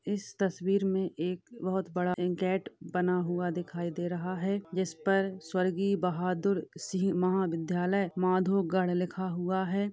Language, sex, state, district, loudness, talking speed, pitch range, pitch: Hindi, female, Uttar Pradesh, Jalaun, -31 LUFS, 140 wpm, 180-190 Hz, 185 Hz